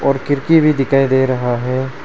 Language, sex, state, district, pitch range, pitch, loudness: Hindi, male, Arunachal Pradesh, Papum Pare, 130-140 Hz, 135 Hz, -15 LUFS